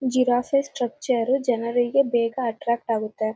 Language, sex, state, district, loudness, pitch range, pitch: Kannada, female, Karnataka, Mysore, -23 LUFS, 230-255 Hz, 245 Hz